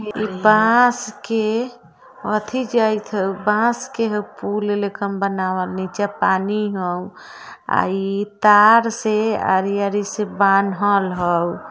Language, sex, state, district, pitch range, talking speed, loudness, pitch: Bajjika, female, Bihar, Vaishali, 195-215 Hz, 120 wpm, -19 LUFS, 205 Hz